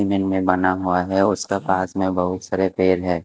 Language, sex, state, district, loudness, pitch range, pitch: Hindi, male, Himachal Pradesh, Shimla, -20 LUFS, 90-95 Hz, 95 Hz